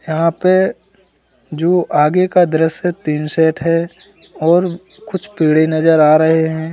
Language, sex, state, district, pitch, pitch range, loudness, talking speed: Hindi, male, Uttar Pradesh, Lalitpur, 165 Hz, 155-180 Hz, -14 LUFS, 145 wpm